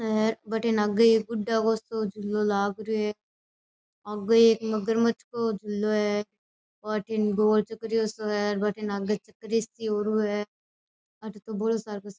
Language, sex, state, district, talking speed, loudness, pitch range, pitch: Rajasthani, female, Rajasthan, Churu, 170 wpm, -26 LUFS, 210-225 Hz, 215 Hz